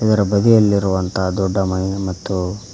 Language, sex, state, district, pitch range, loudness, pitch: Kannada, male, Karnataka, Koppal, 95-100 Hz, -17 LUFS, 95 Hz